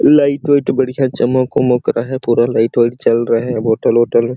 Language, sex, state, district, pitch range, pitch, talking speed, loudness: Hindi, male, Chhattisgarh, Sarguja, 115-130 Hz, 120 Hz, 205 wpm, -14 LUFS